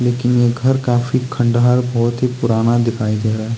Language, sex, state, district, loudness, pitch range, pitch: Hindi, male, Bihar, Gopalganj, -16 LUFS, 115-125 Hz, 120 Hz